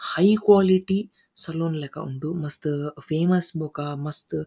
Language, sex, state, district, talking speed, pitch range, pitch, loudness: Tulu, male, Karnataka, Dakshina Kannada, 120 wpm, 150-185 Hz, 160 Hz, -24 LUFS